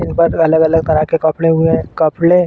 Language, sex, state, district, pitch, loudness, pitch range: Hindi, male, Uttar Pradesh, Ghazipur, 165 Hz, -13 LUFS, 160-165 Hz